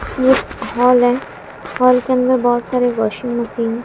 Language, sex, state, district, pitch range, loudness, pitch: Hindi, female, Bihar, West Champaran, 240-255 Hz, -16 LUFS, 245 Hz